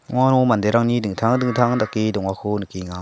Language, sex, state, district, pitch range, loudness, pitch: Garo, male, Meghalaya, South Garo Hills, 105-125 Hz, -20 LUFS, 115 Hz